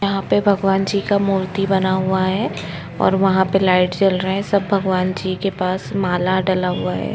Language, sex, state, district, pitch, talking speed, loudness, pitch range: Hindi, female, Jharkhand, Sahebganj, 190 Hz, 210 wpm, -18 LUFS, 185-195 Hz